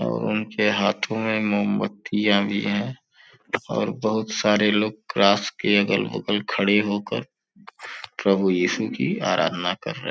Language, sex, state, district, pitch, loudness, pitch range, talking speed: Hindi, male, Uttar Pradesh, Gorakhpur, 105 Hz, -22 LUFS, 100-110 Hz, 140 wpm